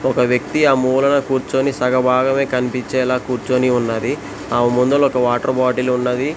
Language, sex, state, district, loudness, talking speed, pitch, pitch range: Telugu, male, Telangana, Hyderabad, -17 LUFS, 140 wpm, 125 Hz, 125-130 Hz